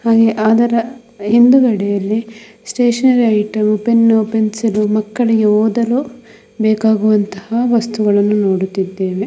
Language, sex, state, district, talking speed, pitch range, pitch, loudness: Kannada, female, Karnataka, Mysore, 80 wpm, 210-230 Hz, 220 Hz, -14 LUFS